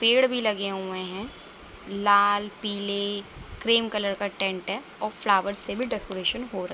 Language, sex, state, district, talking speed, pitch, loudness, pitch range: Hindi, female, Uttar Pradesh, Budaun, 170 wpm, 205 Hz, -25 LUFS, 195-220 Hz